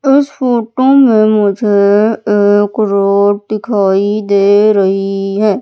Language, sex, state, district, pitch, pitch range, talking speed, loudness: Hindi, female, Madhya Pradesh, Umaria, 205 Hz, 200-220 Hz, 105 wpm, -11 LUFS